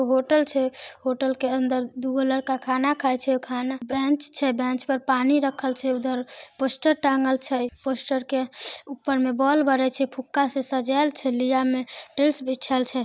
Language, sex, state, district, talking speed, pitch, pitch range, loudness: Maithili, female, Bihar, Samastipur, 175 wpm, 265 Hz, 260-275 Hz, -24 LUFS